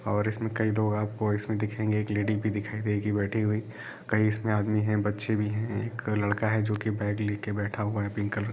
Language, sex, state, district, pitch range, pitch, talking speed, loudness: Hindi, male, Jharkhand, Jamtara, 105-110 Hz, 105 Hz, 230 wpm, -29 LUFS